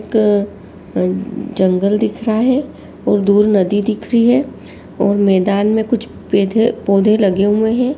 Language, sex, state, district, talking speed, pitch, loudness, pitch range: Hindi, female, Uttar Pradesh, Jyotiba Phule Nagar, 165 wpm, 210 Hz, -15 LUFS, 200-230 Hz